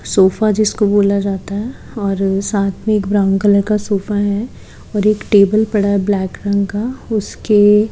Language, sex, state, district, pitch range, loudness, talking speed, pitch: Hindi, female, Haryana, Charkhi Dadri, 200-210 Hz, -15 LUFS, 175 wpm, 205 Hz